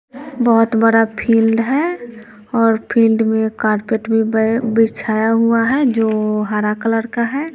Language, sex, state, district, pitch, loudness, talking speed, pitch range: Hindi, male, Bihar, West Champaran, 225 Hz, -16 LUFS, 145 wpm, 220-235 Hz